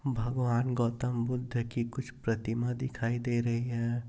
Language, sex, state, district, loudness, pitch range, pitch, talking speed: Hindi, male, Maharashtra, Aurangabad, -32 LUFS, 115-125 Hz, 120 Hz, 145 wpm